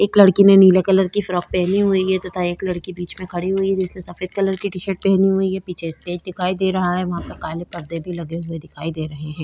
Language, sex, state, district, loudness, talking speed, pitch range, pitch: Hindi, female, Bihar, Vaishali, -19 LUFS, 275 wpm, 175-190 Hz, 185 Hz